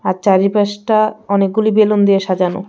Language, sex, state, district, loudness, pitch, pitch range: Bengali, female, Tripura, West Tripura, -14 LUFS, 200 Hz, 195-215 Hz